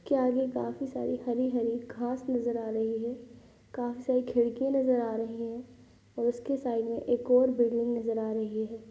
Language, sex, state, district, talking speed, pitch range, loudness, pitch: Hindi, female, Bihar, Sitamarhi, 195 wpm, 230-250 Hz, -30 LUFS, 240 Hz